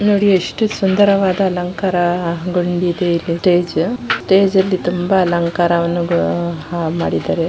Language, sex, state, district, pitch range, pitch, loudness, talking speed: Kannada, female, Karnataka, Shimoga, 170-190 Hz, 175 Hz, -16 LUFS, 120 wpm